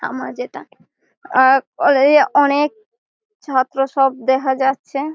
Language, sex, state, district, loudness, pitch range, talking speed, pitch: Bengali, female, West Bengal, Malda, -16 LUFS, 265-295 Hz, 115 wpm, 275 Hz